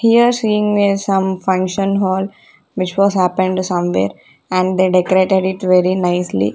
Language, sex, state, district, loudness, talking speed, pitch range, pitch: English, female, Punjab, Kapurthala, -15 LUFS, 145 wpm, 180-195 Hz, 185 Hz